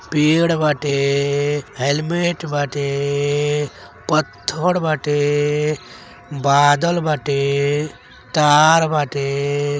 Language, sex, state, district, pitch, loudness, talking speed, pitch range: Bhojpuri, male, Uttar Pradesh, Deoria, 145 Hz, -18 LUFS, 60 wpm, 140-155 Hz